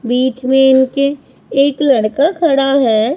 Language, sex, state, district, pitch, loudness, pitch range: Hindi, female, Punjab, Pathankot, 270 Hz, -13 LUFS, 255-280 Hz